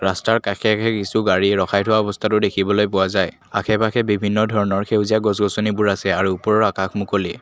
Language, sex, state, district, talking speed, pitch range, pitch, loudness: Assamese, male, Assam, Kamrup Metropolitan, 185 wpm, 95-110 Hz, 105 Hz, -19 LUFS